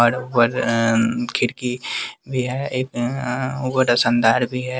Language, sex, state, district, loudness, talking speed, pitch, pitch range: Hindi, male, Bihar, West Champaran, -20 LUFS, 100 wpm, 125 Hz, 120-130 Hz